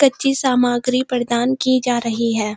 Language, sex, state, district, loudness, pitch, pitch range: Hindi, female, Uttarakhand, Uttarkashi, -18 LUFS, 250 Hz, 235-255 Hz